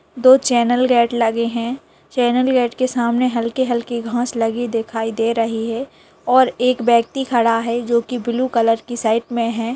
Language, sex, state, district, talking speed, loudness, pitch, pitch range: Hindi, female, Bihar, Kishanganj, 180 wpm, -18 LUFS, 235 Hz, 230-250 Hz